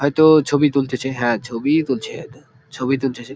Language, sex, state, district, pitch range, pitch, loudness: Bengali, male, West Bengal, Jalpaiguri, 130-145 Hz, 135 Hz, -18 LUFS